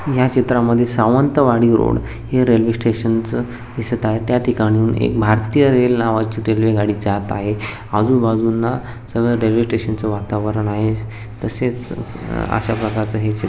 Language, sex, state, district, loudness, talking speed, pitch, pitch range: Marathi, male, Maharashtra, Sindhudurg, -17 LUFS, 155 wpm, 115 Hz, 110-120 Hz